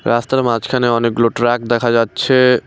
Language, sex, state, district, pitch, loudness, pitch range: Bengali, male, West Bengal, Cooch Behar, 120 Hz, -15 LUFS, 115-125 Hz